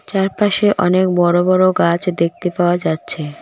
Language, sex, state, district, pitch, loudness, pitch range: Bengali, female, West Bengal, Cooch Behar, 180 Hz, -16 LUFS, 170-185 Hz